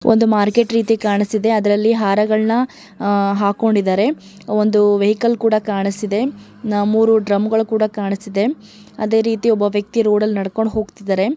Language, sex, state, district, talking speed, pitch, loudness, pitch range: Kannada, male, Karnataka, Mysore, 125 wpm, 215 Hz, -17 LUFS, 205-225 Hz